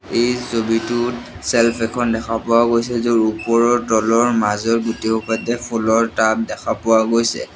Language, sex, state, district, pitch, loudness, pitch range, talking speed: Assamese, male, Assam, Sonitpur, 115 Hz, -18 LUFS, 110-120 Hz, 135 wpm